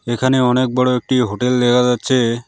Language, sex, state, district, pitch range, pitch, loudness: Bengali, male, West Bengal, Alipurduar, 120-125 Hz, 125 Hz, -16 LUFS